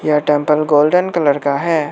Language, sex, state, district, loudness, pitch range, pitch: Hindi, male, Arunachal Pradesh, Lower Dibang Valley, -14 LUFS, 145-160 Hz, 150 Hz